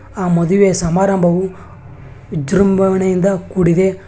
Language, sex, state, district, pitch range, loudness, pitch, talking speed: Kannada, male, Karnataka, Bangalore, 170-195 Hz, -14 LUFS, 185 Hz, 75 wpm